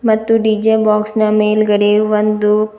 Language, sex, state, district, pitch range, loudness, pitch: Kannada, female, Karnataka, Bidar, 210-220 Hz, -13 LUFS, 215 Hz